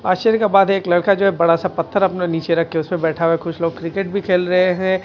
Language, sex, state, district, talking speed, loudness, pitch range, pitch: Hindi, male, Bihar, Kaimur, 275 wpm, -17 LUFS, 165-195 Hz, 180 Hz